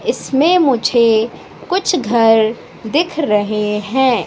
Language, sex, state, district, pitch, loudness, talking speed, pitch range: Hindi, female, Madhya Pradesh, Katni, 240 Hz, -15 LUFS, 100 wpm, 220-315 Hz